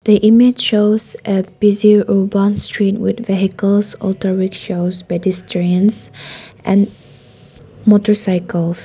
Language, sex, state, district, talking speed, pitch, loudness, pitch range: English, female, Nagaland, Dimapur, 95 wpm, 200 Hz, -15 LUFS, 190-210 Hz